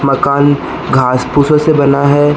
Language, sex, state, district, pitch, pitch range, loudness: Hindi, male, Arunachal Pradesh, Lower Dibang Valley, 140 Hz, 135-145 Hz, -11 LUFS